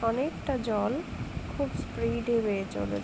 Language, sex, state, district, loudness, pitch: Bengali, female, West Bengal, Jhargram, -31 LUFS, 210 Hz